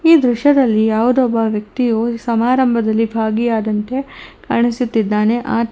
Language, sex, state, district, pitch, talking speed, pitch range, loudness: Kannada, female, Karnataka, Bangalore, 230 Hz, 95 wpm, 220-250 Hz, -16 LUFS